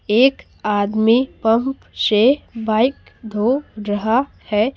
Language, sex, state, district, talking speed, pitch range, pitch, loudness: Hindi, female, Bihar, Patna, 100 wpm, 215-255 Hz, 225 Hz, -18 LUFS